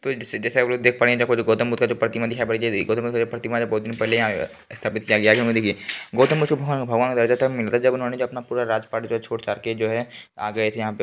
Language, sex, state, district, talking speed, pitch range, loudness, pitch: Hindi, male, Bihar, Jamui, 270 wpm, 110-120 Hz, -22 LUFS, 115 Hz